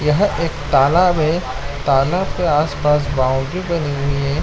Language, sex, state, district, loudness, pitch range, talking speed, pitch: Hindi, male, Chhattisgarh, Korba, -17 LUFS, 140-170 Hz, 160 wpm, 150 Hz